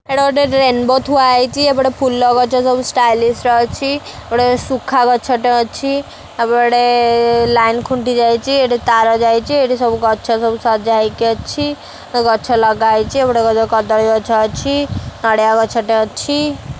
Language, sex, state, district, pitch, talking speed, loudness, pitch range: Odia, female, Odisha, Khordha, 240 Hz, 155 wpm, -14 LUFS, 225-260 Hz